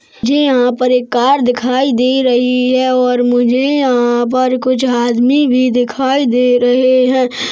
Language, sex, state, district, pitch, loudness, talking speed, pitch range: Hindi, male, Chhattisgarh, Rajnandgaon, 255 Hz, -12 LUFS, 160 wpm, 245-260 Hz